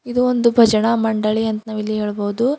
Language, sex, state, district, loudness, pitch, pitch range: Kannada, female, Karnataka, Bidar, -18 LUFS, 220 Hz, 215-235 Hz